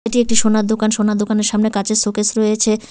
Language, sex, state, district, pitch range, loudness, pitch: Bengali, female, West Bengal, Cooch Behar, 210-220 Hz, -16 LUFS, 215 Hz